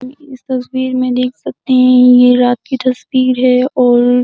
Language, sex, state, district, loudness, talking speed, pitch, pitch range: Hindi, female, Uttar Pradesh, Jyotiba Phule Nagar, -11 LUFS, 185 wpm, 255 Hz, 250-260 Hz